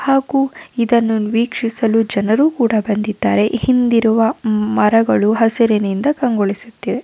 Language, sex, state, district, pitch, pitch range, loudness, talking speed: Kannada, female, Karnataka, Raichur, 225 Hz, 215-245 Hz, -16 LUFS, 95 wpm